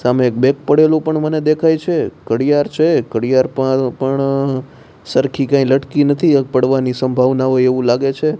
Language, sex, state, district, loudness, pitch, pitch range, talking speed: Gujarati, male, Gujarat, Gandhinagar, -15 LUFS, 135 Hz, 130-150 Hz, 155 wpm